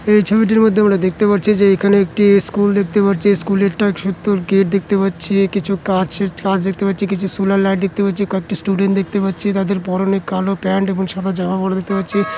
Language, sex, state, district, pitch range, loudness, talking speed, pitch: Bengali, male, West Bengal, Malda, 190-200 Hz, -15 LUFS, 215 wpm, 195 Hz